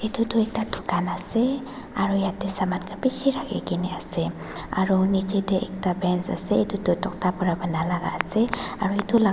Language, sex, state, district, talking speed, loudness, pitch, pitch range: Nagamese, female, Nagaland, Dimapur, 180 wpm, -25 LUFS, 195 Hz, 180-220 Hz